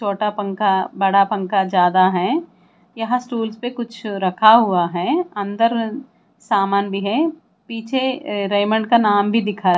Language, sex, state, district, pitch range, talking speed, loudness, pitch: Hindi, female, Bihar, Katihar, 195-230 Hz, 140 wpm, -18 LUFS, 210 Hz